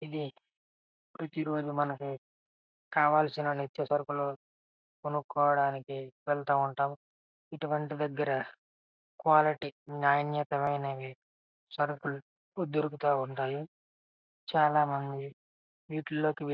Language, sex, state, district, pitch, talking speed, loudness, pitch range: Telugu, male, Andhra Pradesh, Srikakulam, 145 Hz, 70 wpm, -32 LUFS, 135-150 Hz